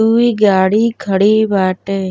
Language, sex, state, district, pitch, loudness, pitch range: Bhojpuri, female, Uttar Pradesh, Gorakhpur, 205 Hz, -13 LUFS, 190-220 Hz